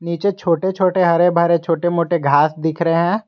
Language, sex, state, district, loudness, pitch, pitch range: Hindi, male, Jharkhand, Garhwa, -16 LUFS, 170 Hz, 165-180 Hz